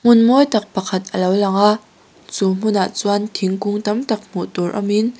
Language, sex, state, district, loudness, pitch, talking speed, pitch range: Mizo, female, Mizoram, Aizawl, -18 LUFS, 205 Hz, 185 wpm, 190-215 Hz